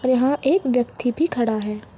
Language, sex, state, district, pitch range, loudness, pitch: Hindi, female, Uttar Pradesh, Varanasi, 240-270 Hz, -21 LUFS, 250 Hz